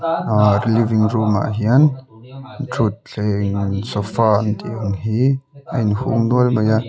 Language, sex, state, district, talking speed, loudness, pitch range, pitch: Mizo, male, Mizoram, Aizawl, 120 wpm, -18 LUFS, 105-130 Hz, 110 Hz